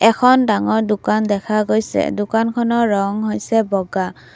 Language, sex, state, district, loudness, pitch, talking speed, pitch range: Assamese, female, Assam, Kamrup Metropolitan, -17 LUFS, 215 Hz, 125 wpm, 205-225 Hz